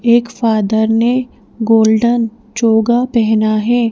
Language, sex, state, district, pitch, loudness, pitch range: Hindi, female, Madhya Pradesh, Bhopal, 230 Hz, -13 LUFS, 220-235 Hz